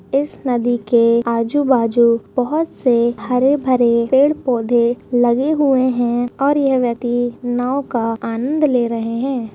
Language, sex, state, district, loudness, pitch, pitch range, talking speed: Hindi, female, Uttarakhand, Uttarkashi, -17 LUFS, 245 Hz, 235-265 Hz, 125 wpm